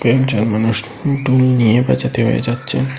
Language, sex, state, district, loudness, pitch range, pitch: Bengali, male, Assam, Hailakandi, -15 LUFS, 115-130 Hz, 120 Hz